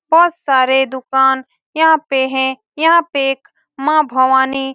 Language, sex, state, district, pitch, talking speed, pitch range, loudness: Hindi, female, Bihar, Saran, 270 Hz, 150 wpm, 265-320 Hz, -14 LUFS